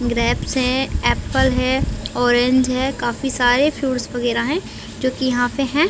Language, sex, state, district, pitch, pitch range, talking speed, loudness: Hindi, female, Chhattisgarh, Raigarh, 255 Hz, 245-270 Hz, 150 wpm, -19 LUFS